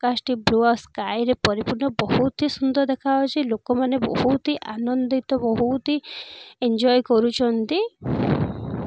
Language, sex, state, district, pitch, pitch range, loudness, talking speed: Odia, female, Odisha, Nuapada, 255 Hz, 235-270 Hz, -22 LUFS, 120 wpm